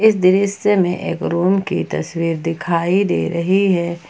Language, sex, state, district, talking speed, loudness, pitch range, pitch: Hindi, female, Jharkhand, Ranchi, 160 wpm, -17 LUFS, 170-195 Hz, 180 Hz